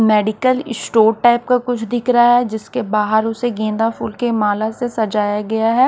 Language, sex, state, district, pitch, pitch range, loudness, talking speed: Hindi, female, Odisha, Nuapada, 225 Hz, 215-245 Hz, -17 LUFS, 195 wpm